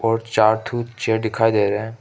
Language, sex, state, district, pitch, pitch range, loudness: Hindi, male, Arunachal Pradesh, Papum Pare, 115 Hz, 110-115 Hz, -19 LUFS